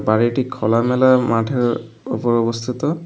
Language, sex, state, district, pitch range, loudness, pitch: Bengali, male, West Bengal, Alipurduar, 115-130 Hz, -18 LUFS, 120 Hz